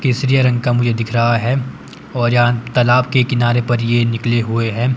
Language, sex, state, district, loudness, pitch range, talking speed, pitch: Hindi, male, Himachal Pradesh, Shimla, -15 LUFS, 120-125 Hz, 205 wpm, 120 Hz